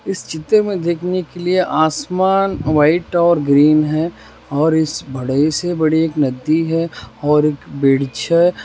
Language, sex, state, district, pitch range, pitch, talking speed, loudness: Hindi, male, Rajasthan, Nagaur, 150-175 Hz, 160 Hz, 155 wpm, -16 LUFS